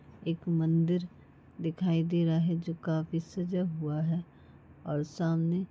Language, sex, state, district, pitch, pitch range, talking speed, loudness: Hindi, female, West Bengal, Malda, 165 Hz, 160-175 Hz, 135 wpm, -31 LUFS